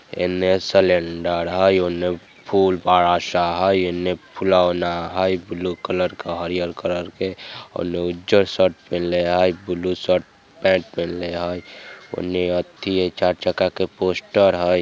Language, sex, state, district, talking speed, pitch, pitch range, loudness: Hindi, male, Bihar, Vaishali, 140 wpm, 90 Hz, 85-95 Hz, -20 LUFS